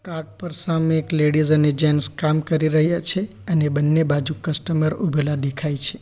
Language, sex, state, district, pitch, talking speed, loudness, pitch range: Gujarati, male, Gujarat, Valsad, 155 Hz, 180 wpm, -19 LUFS, 150-160 Hz